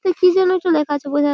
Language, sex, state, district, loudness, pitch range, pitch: Bengali, female, West Bengal, Malda, -17 LUFS, 290-370 Hz, 345 Hz